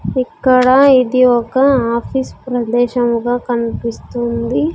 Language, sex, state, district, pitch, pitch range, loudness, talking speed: Telugu, female, Andhra Pradesh, Sri Satya Sai, 245 Hz, 235-255 Hz, -14 LUFS, 75 wpm